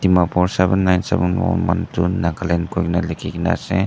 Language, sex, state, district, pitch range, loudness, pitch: Nagamese, male, Nagaland, Dimapur, 85-95 Hz, -19 LUFS, 90 Hz